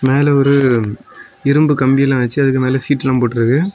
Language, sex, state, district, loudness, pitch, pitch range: Tamil, male, Tamil Nadu, Kanyakumari, -14 LUFS, 135 Hz, 130-140 Hz